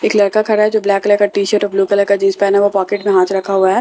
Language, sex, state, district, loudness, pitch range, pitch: Hindi, female, Bihar, Katihar, -14 LUFS, 195-205 Hz, 200 Hz